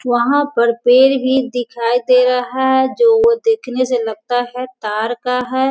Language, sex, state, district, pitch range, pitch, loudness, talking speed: Hindi, female, Bihar, Sitamarhi, 245-265 Hz, 250 Hz, -15 LUFS, 180 wpm